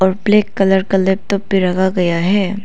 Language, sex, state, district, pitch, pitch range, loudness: Hindi, female, Arunachal Pradesh, Lower Dibang Valley, 195 Hz, 190-200 Hz, -15 LUFS